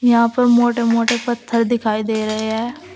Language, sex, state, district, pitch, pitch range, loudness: Hindi, female, Uttar Pradesh, Saharanpur, 235 Hz, 225-240 Hz, -17 LUFS